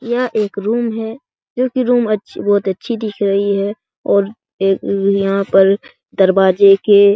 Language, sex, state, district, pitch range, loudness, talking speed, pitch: Hindi, male, Bihar, Jahanabad, 195-225 Hz, -15 LUFS, 160 wpm, 200 Hz